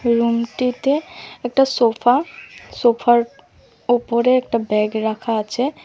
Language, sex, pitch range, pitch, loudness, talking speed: Bengali, female, 230-255 Hz, 240 Hz, -18 LUFS, 90 wpm